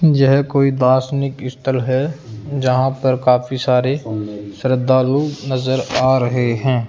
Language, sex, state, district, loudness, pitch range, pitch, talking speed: Hindi, male, Rajasthan, Jaipur, -17 LUFS, 125-135 Hz, 130 Hz, 120 wpm